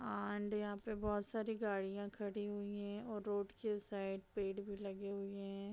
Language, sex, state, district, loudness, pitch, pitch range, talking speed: Hindi, female, Uttar Pradesh, Deoria, -43 LUFS, 205 Hz, 200-210 Hz, 200 wpm